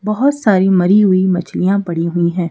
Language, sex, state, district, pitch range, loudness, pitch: Hindi, female, Madhya Pradesh, Bhopal, 175-205 Hz, -14 LUFS, 185 Hz